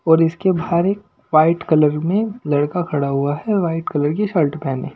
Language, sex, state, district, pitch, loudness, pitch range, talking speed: Hindi, male, Punjab, Pathankot, 165 Hz, -18 LUFS, 150-185 Hz, 195 wpm